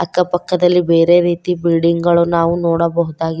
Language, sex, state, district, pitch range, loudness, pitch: Kannada, female, Karnataka, Koppal, 170-175 Hz, -14 LUFS, 170 Hz